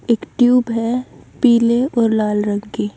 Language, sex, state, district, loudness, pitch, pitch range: Hindi, female, Haryana, Jhajjar, -16 LUFS, 230 Hz, 215-245 Hz